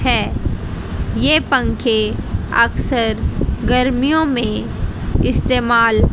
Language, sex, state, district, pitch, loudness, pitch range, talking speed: Hindi, female, Haryana, Jhajjar, 250 Hz, -17 LUFS, 235-275 Hz, 70 wpm